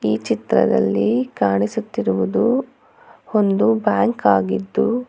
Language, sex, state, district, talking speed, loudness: Kannada, female, Karnataka, Bangalore, 70 wpm, -19 LUFS